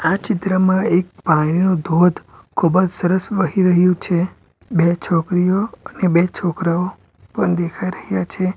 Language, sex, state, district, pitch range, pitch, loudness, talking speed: Gujarati, male, Gujarat, Valsad, 170-185 Hz, 180 Hz, -18 LUFS, 135 wpm